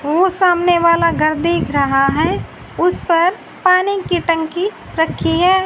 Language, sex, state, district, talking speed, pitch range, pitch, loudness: Hindi, female, Haryana, Rohtak, 150 wpm, 330-365 Hz, 345 Hz, -15 LUFS